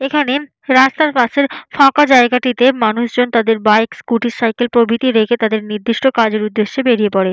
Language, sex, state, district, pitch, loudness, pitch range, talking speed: Bengali, female, West Bengal, Jalpaiguri, 240 Hz, -13 LUFS, 225-265 Hz, 145 wpm